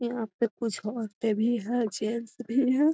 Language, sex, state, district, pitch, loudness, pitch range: Magahi, female, Bihar, Gaya, 235 Hz, -29 LUFS, 220-240 Hz